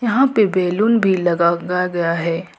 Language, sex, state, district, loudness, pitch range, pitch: Hindi, female, Jharkhand, Ranchi, -17 LUFS, 170-215 Hz, 180 Hz